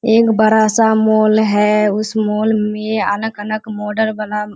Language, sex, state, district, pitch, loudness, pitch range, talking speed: Hindi, female, Bihar, Kishanganj, 215 Hz, -15 LUFS, 210-220 Hz, 160 wpm